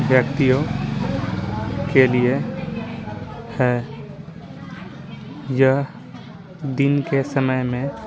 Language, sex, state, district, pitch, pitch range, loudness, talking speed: Hindi, male, Bihar, Patna, 130 Hz, 125-140 Hz, -21 LUFS, 75 wpm